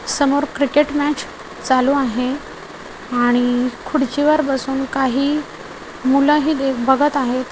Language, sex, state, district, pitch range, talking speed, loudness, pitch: Marathi, female, Maharashtra, Chandrapur, 260-290 Hz, 110 wpm, -18 LUFS, 270 Hz